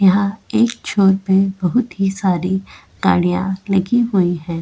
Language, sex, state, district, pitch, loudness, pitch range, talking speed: Hindi, female, Goa, North and South Goa, 190 Hz, -17 LUFS, 185-200 Hz, 145 wpm